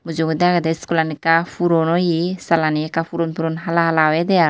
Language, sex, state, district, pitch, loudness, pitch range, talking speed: Chakma, female, Tripura, Unakoti, 165 Hz, -18 LUFS, 160-170 Hz, 185 wpm